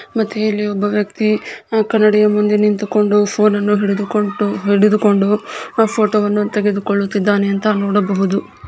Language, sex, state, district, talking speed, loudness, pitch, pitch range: Kannada, female, Karnataka, Gulbarga, 125 wpm, -15 LUFS, 210 Hz, 205-215 Hz